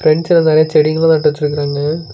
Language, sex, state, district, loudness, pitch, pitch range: Tamil, male, Karnataka, Bangalore, -13 LUFS, 155 Hz, 150-160 Hz